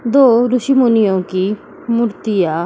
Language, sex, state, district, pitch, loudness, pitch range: Hindi, female, Uttar Pradesh, Jyotiba Phule Nagar, 225 Hz, -14 LUFS, 190-250 Hz